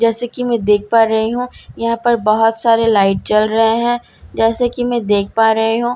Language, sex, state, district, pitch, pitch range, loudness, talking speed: Hindi, female, Bihar, Katihar, 225 Hz, 220-240 Hz, -15 LUFS, 220 wpm